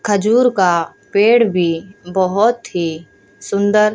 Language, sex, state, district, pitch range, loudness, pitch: Hindi, male, Haryana, Charkhi Dadri, 165-210 Hz, -15 LUFS, 195 Hz